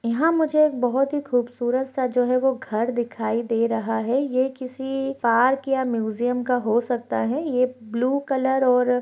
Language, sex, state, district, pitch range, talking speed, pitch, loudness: Hindi, female, Chhattisgarh, Balrampur, 235-265 Hz, 185 wpm, 250 Hz, -23 LUFS